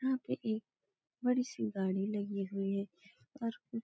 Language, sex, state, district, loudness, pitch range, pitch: Hindi, female, Uttar Pradesh, Etah, -37 LUFS, 195-245 Hz, 210 Hz